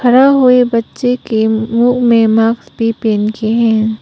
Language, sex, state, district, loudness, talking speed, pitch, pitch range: Hindi, female, Arunachal Pradesh, Papum Pare, -12 LUFS, 135 wpm, 230 Hz, 220-245 Hz